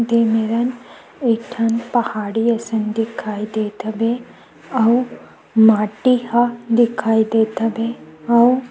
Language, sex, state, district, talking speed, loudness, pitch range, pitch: Chhattisgarhi, female, Chhattisgarh, Sukma, 110 wpm, -18 LUFS, 220-240 Hz, 230 Hz